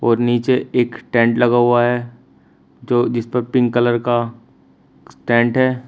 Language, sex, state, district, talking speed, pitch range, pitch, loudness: Hindi, male, Uttar Pradesh, Shamli, 135 wpm, 115-120 Hz, 120 Hz, -17 LUFS